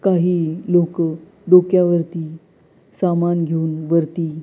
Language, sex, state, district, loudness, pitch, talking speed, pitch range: Marathi, female, Maharashtra, Gondia, -18 LUFS, 170 Hz, 80 wpm, 160-180 Hz